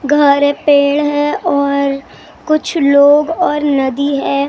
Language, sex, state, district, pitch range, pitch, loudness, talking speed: Hindi, female, Maharashtra, Gondia, 280-295 Hz, 285 Hz, -12 LUFS, 135 wpm